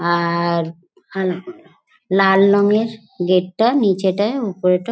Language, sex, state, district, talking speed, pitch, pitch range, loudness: Bengali, female, West Bengal, Dakshin Dinajpur, 100 wpm, 195 Hz, 180-220 Hz, -17 LUFS